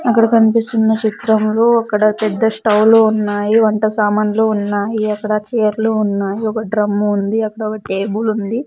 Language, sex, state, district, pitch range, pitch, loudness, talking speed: Telugu, female, Andhra Pradesh, Sri Satya Sai, 210-225 Hz, 215 Hz, -15 LUFS, 150 wpm